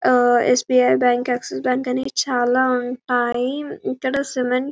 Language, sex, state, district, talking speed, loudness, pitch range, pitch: Telugu, female, Telangana, Karimnagar, 140 wpm, -19 LUFS, 245-260 Hz, 250 Hz